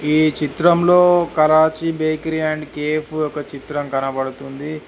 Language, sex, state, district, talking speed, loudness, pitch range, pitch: Telugu, male, Telangana, Hyderabad, 110 wpm, -18 LUFS, 150-160 Hz, 155 Hz